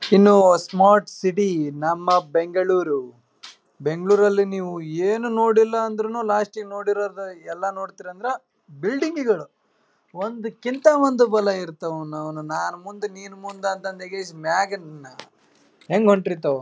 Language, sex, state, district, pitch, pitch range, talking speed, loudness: Kannada, male, Karnataka, Raichur, 195 Hz, 175-210 Hz, 115 wpm, -21 LUFS